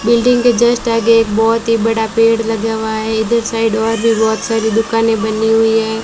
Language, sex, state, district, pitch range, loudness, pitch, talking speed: Hindi, female, Rajasthan, Bikaner, 220-230 Hz, -13 LUFS, 225 Hz, 220 wpm